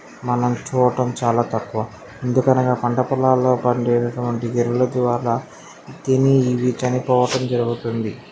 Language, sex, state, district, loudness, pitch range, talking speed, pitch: Telugu, male, Andhra Pradesh, Srikakulam, -19 LUFS, 120-130 Hz, 100 wpm, 125 Hz